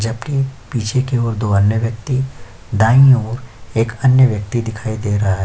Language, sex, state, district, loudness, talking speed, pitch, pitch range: Hindi, male, Uttar Pradesh, Jyotiba Phule Nagar, -16 LUFS, 185 wpm, 115 Hz, 110-130 Hz